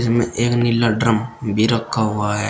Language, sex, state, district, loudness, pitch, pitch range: Hindi, male, Uttar Pradesh, Shamli, -18 LUFS, 115 Hz, 110-120 Hz